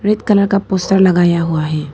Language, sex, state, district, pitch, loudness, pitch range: Hindi, female, Arunachal Pradesh, Papum Pare, 190 Hz, -14 LUFS, 165-200 Hz